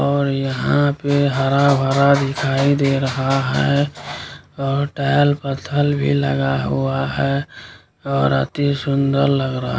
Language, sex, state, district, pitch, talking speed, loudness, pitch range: Hindi, male, Bihar, Kishanganj, 140 Hz, 130 wpm, -18 LUFS, 130-140 Hz